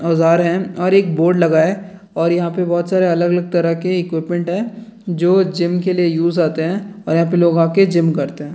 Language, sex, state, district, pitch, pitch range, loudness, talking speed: Hindi, male, Bihar, Jamui, 175 Hz, 165-185 Hz, -16 LUFS, 225 wpm